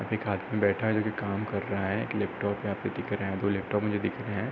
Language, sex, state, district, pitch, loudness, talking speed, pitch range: Hindi, male, Uttar Pradesh, Hamirpur, 100 Hz, -30 LUFS, 290 wpm, 100-110 Hz